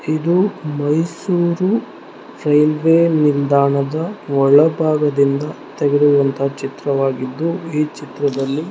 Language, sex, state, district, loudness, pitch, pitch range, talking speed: Kannada, male, Karnataka, Mysore, -17 LUFS, 150 Hz, 140-165 Hz, 60 wpm